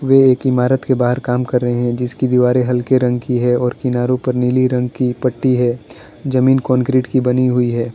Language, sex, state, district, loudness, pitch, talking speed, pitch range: Hindi, male, Arunachal Pradesh, Lower Dibang Valley, -16 LUFS, 125 Hz, 220 wpm, 125-130 Hz